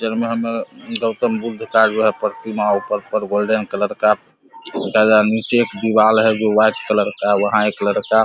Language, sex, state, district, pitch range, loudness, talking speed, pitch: Hindi, male, Bihar, Vaishali, 105-110 Hz, -17 LUFS, 205 wpm, 110 Hz